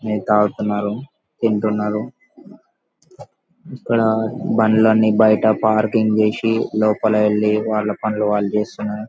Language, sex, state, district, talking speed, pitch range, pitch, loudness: Telugu, male, Andhra Pradesh, Anantapur, 90 wpm, 105-110 Hz, 110 Hz, -18 LUFS